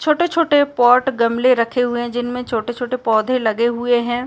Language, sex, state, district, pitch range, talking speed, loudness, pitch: Hindi, female, Uttar Pradesh, Muzaffarnagar, 235-255 Hz, 170 wpm, -17 LUFS, 245 Hz